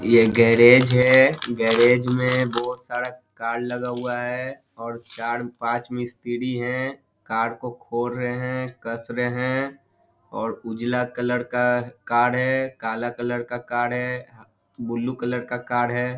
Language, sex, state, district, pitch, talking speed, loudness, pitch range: Hindi, male, Bihar, Muzaffarpur, 120 Hz, 145 wpm, -22 LUFS, 120-125 Hz